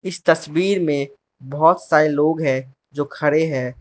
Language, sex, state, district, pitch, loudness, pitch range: Hindi, male, Manipur, Imphal West, 150 Hz, -19 LUFS, 140-160 Hz